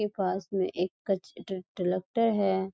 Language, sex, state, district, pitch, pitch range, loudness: Hindi, female, Bihar, East Champaran, 190 Hz, 185-200 Hz, -30 LUFS